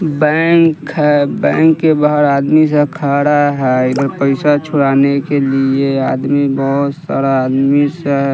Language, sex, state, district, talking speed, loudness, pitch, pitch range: Hindi, male, Bihar, West Champaran, 135 wpm, -13 LUFS, 145 Hz, 135-150 Hz